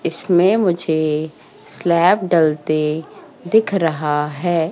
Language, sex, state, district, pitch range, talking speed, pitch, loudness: Hindi, female, Madhya Pradesh, Katni, 155-185 Hz, 90 wpm, 170 Hz, -17 LUFS